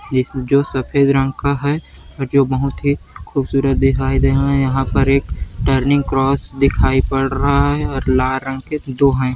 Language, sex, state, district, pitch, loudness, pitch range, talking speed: Hindi, male, Chhattisgarh, Kabirdham, 135 Hz, -17 LUFS, 130-140 Hz, 190 wpm